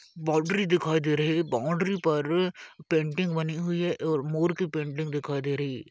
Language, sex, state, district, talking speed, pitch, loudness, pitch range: Hindi, male, Uttar Pradesh, Budaun, 195 wpm, 160 Hz, -27 LUFS, 150-175 Hz